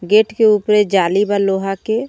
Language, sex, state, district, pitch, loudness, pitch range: Bhojpuri, female, Jharkhand, Palamu, 205 Hz, -15 LUFS, 195-215 Hz